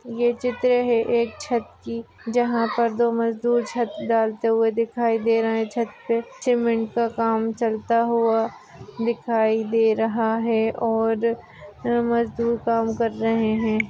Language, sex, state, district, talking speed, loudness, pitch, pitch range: Hindi, female, Maharashtra, Nagpur, 145 wpm, -22 LUFS, 230 Hz, 225-235 Hz